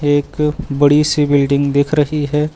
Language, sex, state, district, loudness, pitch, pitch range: Hindi, male, Uttar Pradesh, Lucknow, -15 LUFS, 145 Hz, 145-150 Hz